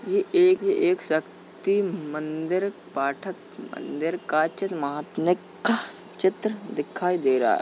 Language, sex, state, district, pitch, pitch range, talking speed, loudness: Hindi, male, Uttar Pradesh, Jalaun, 185 Hz, 155-210 Hz, 100 wpm, -25 LUFS